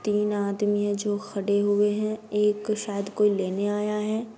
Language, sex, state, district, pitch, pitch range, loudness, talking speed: Hindi, female, Bihar, East Champaran, 210 Hz, 205-210 Hz, -26 LUFS, 190 wpm